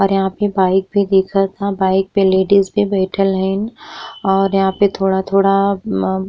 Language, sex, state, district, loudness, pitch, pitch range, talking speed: Bhojpuri, female, Bihar, East Champaran, -16 LUFS, 195 Hz, 190-200 Hz, 180 wpm